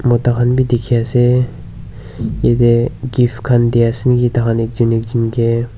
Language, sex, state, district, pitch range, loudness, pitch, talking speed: Nagamese, male, Nagaland, Dimapur, 115-125 Hz, -15 LUFS, 120 Hz, 185 wpm